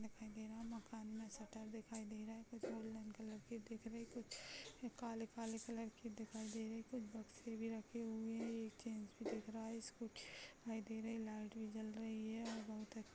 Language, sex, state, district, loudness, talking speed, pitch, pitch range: Hindi, female, Chhattisgarh, Rajnandgaon, -50 LUFS, 235 wpm, 225 Hz, 220-230 Hz